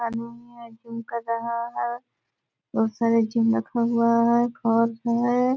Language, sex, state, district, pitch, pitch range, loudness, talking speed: Hindi, female, Bihar, Purnia, 230 Hz, 225-235 Hz, -24 LUFS, 150 wpm